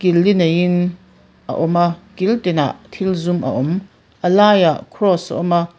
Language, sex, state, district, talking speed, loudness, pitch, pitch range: Mizo, female, Mizoram, Aizawl, 185 wpm, -17 LUFS, 175 Hz, 170-190 Hz